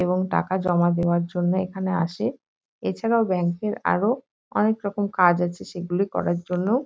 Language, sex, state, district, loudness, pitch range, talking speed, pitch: Bengali, female, West Bengal, North 24 Parganas, -24 LUFS, 175-210 Hz, 150 wpm, 185 Hz